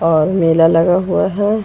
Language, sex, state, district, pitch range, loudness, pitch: Hindi, female, Uttar Pradesh, Varanasi, 165-195 Hz, -13 LUFS, 175 Hz